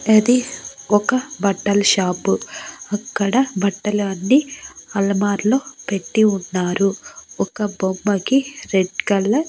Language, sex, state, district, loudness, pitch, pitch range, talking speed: Telugu, female, Andhra Pradesh, Annamaya, -19 LUFS, 205 Hz, 195-245 Hz, 100 wpm